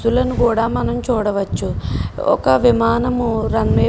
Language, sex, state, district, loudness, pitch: Telugu, female, Telangana, Karimnagar, -17 LUFS, 230 Hz